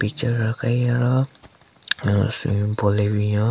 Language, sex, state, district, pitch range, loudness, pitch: Rengma, male, Nagaland, Kohima, 105-120 Hz, -21 LUFS, 110 Hz